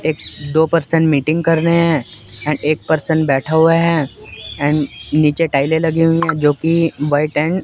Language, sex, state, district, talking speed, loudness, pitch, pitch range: Hindi, male, Chandigarh, Chandigarh, 180 wpm, -16 LUFS, 155 Hz, 145-165 Hz